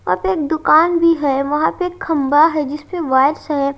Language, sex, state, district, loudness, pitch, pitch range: Hindi, female, Haryana, Jhajjar, -16 LUFS, 310 Hz, 285-335 Hz